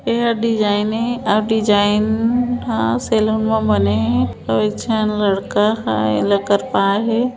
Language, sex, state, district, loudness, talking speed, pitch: Hindi, female, Chhattisgarh, Bilaspur, -17 LUFS, 140 wpm, 210 Hz